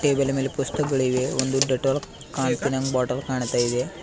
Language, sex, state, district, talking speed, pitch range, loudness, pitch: Kannada, male, Karnataka, Bidar, 150 wpm, 125-135 Hz, -24 LUFS, 130 Hz